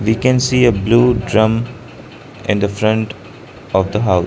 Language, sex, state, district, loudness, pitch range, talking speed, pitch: English, male, Arunachal Pradesh, Lower Dibang Valley, -15 LUFS, 105-120 Hz, 185 wpm, 110 Hz